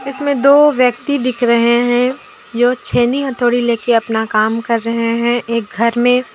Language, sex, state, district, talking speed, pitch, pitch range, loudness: Hindi, female, Jharkhand, Deoghar, 170 wpm, 240 Hz, 230-255 Hz, -14 LUFS